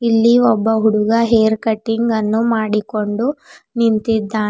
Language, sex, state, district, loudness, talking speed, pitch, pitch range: Kannada, female, Karnataka, Bidar, -16 LUFS, 105 wpm, 225 Hz, 215-230 Hz